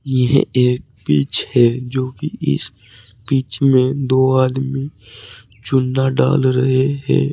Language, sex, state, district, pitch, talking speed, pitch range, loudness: Hindi, male, Uttar Pradesh, Saharanpur, 130 Hz, 125 wpm, 115-135 Hz, -17 LUFS